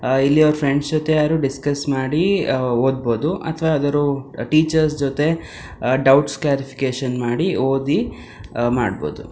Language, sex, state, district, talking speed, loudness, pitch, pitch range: Kannada, male, Karnataka, Mysore, 115 wpm, -19 LUFS, 140 Hz, 130-155 Hz